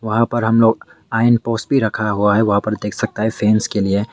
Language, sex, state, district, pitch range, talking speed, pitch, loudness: Hindi, male, Meghalaya, West Garo Hills, 105-115 Hz, 245 wpm, 110 Hz, -17 LUFS